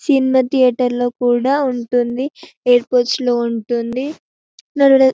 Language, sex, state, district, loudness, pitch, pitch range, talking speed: Telugu, female, Telangana, Karimnagar, -16 LUFS, 250 Hz, 245-270 Hz, 95 wpm